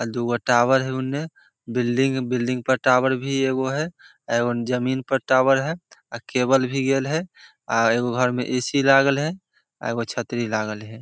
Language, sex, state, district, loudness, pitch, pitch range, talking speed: Maithili, male, Bihar, Samastipur, -22 LUFS, 130 Hz, 120-135 Hz, 175 wpm